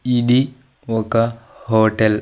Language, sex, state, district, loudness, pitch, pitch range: Telugu, male, Andhra Pradesh, Sri Satya Sai, -18 LUFS, 115 Hz, 110-130 Hz